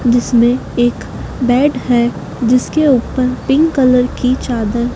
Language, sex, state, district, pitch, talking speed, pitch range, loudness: Hindi, female, Madhya Pradesh, Dhar, 250 Hz, 120 wpm, 240-260 Hz, -14 LUFS